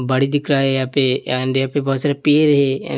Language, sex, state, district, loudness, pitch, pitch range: Hindi, male, Uttar Pradesh, Hamirpur, -17 LUFS, 135 Hz, 130-145 Hz